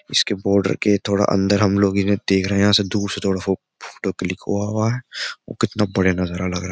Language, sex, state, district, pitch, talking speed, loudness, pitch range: Hindi, male, Uttar Pradesh, Jyotiba Phule Nagar, 100 Hz, 230 wpm, -20 LUFS, 95-100 Hz